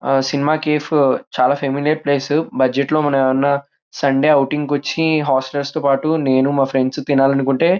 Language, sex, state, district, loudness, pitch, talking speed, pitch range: Telugu, male, Andhra Pradesh, Krishna, -17 LUFS, 140 Hz, 185 wpm, 135-150 Hz